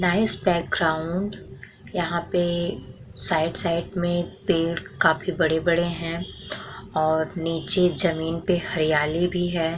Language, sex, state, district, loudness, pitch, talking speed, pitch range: Hindi, female, Bihar, Vaishali, -22 LUFS, 170 Hz, 110 wpm, 160-175 Hz